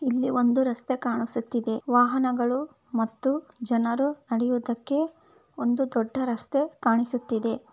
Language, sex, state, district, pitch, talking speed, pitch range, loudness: Kannada, female, Karnataka, Bellary, 245 Hz, 95 wpm, 235-265 Hz, -26 LUFS